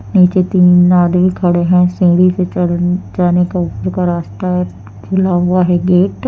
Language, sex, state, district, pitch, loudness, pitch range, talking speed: Hindi, female, Jharkhand, Deoghar, 180 Hz, -13 LUFS, 175-185 Hz, 180 wpm